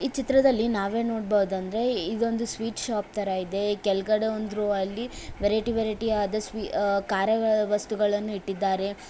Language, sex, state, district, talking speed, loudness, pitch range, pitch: Kannada, female, Karnataka, Bellary, 130 wpm, -26 LUFS, 200-225 Hz, 210 Hz